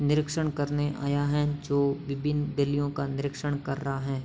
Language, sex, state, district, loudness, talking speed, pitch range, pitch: Hindi, male, Uttar Pradesh, Hamirpur, -29 LUFS, 170 wpm, 140-145 Hz, 145 Hz